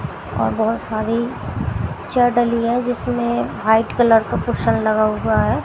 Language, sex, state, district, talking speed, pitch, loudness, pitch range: Hindi, female, Haryana, Jhajjar, 130 wpm, 220 Hz, -19 LUFS, 205-235 Hz